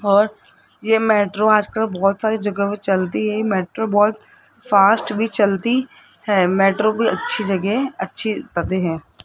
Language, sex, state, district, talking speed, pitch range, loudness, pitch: Hindi, male, Rajasthan, Jaipur, 150 wpm, 195-220 Hz, -18 LUFS, 210 Hz